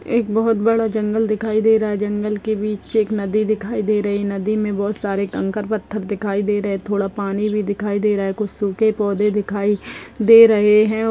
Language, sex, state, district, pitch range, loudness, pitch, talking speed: Kumaoni, female, Uttarakhand, Uttarkashi, 205-215 Hz, -18 LUFS, 210 Hz, 225 wpm